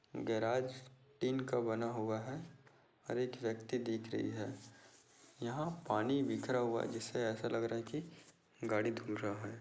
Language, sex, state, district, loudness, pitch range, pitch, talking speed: Hindi, male, Chhattisgarh, Korba, -39 LUFS, 115-130 Hz, 120 Hz, 170 wpm